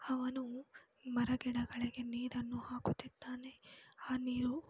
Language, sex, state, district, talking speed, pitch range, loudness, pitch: Kannada, female, Karnataka, Mysore, 90 wpm, 245-255 Hz, -41 LUFS, 250 Hz